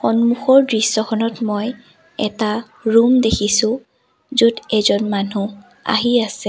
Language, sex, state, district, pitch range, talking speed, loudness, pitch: Assamese, female, Assam, Sonitpur, 215-245 Hz, 100 wpm, -17 LUFS, 225 Hz